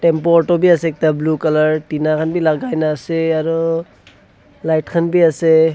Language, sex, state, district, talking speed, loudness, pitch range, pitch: Nagamese, male, Nagaland, Dimapur, 175 wpm, -16 LUFS, 155-165 Hz, 160 Hz